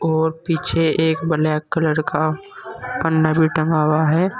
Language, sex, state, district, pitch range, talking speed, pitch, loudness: Hindi, male, Uttar Pradesh, Saharanpur, 155-165 Hz, 135 wpm, 160 Hz, -19 LUFS